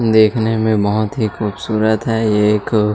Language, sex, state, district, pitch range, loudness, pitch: Hindi, male, Chhattisgarh, Jashpur, 105-110 Hz, -16 LUFS, 110 Hz